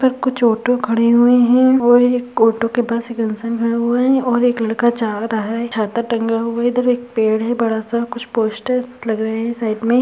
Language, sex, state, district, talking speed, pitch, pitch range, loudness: Hindi, female, Uttar Pradesh, Gorakhpur, 240 wpm, 235 Hz, 225-245 Hz, -17 LUFS